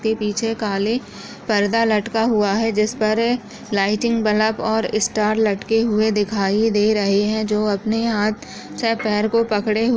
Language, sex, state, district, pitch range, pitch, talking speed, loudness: Hindi, female, Goa, North and South Goa, 210-225 Hz, 215 Hz, 160 wpm, -19 LUFS